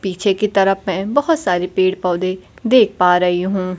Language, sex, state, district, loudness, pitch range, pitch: Hindi, female, Bihar, Kaimur, -16 LUFS, 180-200 Hz, 190 Hz